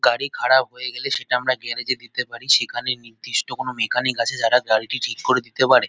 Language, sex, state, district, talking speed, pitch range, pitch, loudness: Bengali, male, West Bengal, North 24 Parganas, 215 wpm, 120-130 Hz, 125 Hz, -21 LUFS